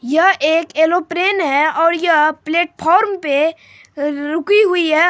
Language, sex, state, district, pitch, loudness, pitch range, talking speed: Hindi, female, Bihar, Supaul, 325 Hz, -15 LUFS, 305-350 Hz, 130 wpm